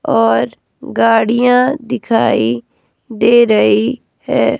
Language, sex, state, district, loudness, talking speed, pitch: Hindi, female, Himachal Pradesh, Shimla, -13 LUFS, 80 wpm, 225 Hz